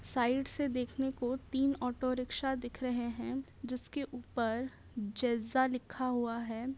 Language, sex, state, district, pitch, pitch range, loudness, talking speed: Hindi, female, Bihar, Bhagalpur, 255 Hz, 240-265 Hz, -36 LUFS, 150 wpm